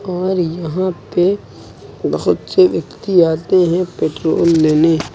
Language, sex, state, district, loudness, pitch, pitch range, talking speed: Hindi, male, Uttar Pradesh, Lucknow, -15 LUFS, 175 Hz, 160-185 Hz, 115 wpm